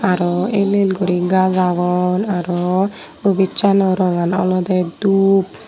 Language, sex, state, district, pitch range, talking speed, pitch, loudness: Chakma, female, Tripura, Unakoti, 180-195 Hz, 115 wpm, 185 Hz, -16 LUFS